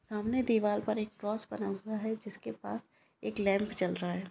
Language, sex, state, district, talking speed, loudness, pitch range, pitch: Hindi, female, Maharashtra, Sindhudurg, 210 wpm, -34 LUFS, 200-215 Hz, 210 Hz